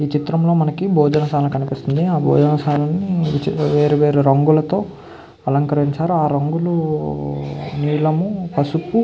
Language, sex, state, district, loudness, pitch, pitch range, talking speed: Telugu, male, Andhra Pradesh, Krishna, -18 LUFS, 150 Hz, 145-165 Hz, 100 wpm